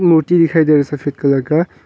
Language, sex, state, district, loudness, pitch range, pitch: Hindi, male, Arunachal Pradesh, Longding, -14 LUFS, 145-165 Hz, 155 Hz